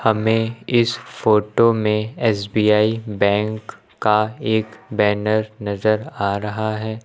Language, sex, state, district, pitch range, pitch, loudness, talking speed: Hindi, male, Uttar Pradesh, Lucknow, 105-110 Hz, 110 Hz, -19 LUFS, 110 wpm